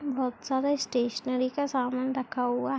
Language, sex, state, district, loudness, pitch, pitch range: Hindi, female, Chhattisgarh, Bilaspur, -29 LUFS, 255 Hz, 250-270 Hz